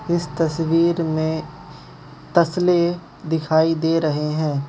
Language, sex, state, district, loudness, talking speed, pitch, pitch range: Hindi, male, Manipur, Imphal West, -20 LUFS, 100 wpm, 160 Hz, 155-170 Hz